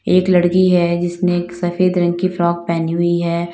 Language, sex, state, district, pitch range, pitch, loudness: Hindi, female, Uttar Pradesh, Lalitpur, 170-180 Hz, 175 Hz, -16 LUFS